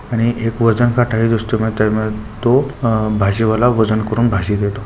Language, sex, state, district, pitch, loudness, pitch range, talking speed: Marathi, male, Maharashtra, Pune, 110 Hz, -16 LUFS, 110-120 Hz, 125 wpm